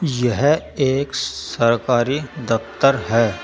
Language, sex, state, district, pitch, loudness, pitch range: Hindi, male, Uttar Pradesh, Saharanpur, 125 Hz, -19 LUFS, 115-140 Hz